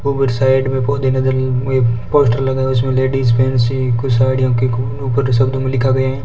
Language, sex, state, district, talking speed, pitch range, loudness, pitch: Hindi, male, Rajasthan, Bikaner, 190 wpm, 125-130 Hz, -15 LUFS, 130 Hz